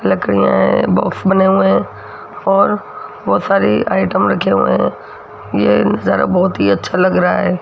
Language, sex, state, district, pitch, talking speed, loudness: Hindi, female, Rajasthan, Jaipur, 180 Hz, 165 wpm, -14 LUFS